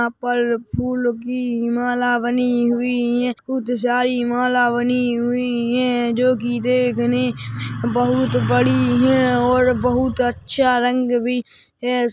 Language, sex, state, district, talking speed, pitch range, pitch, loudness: Hindi, male, Chhattisgarh, Rajnandgaon, 130 wpm, 240-250 Hz, 245 Hz, -19 LUFS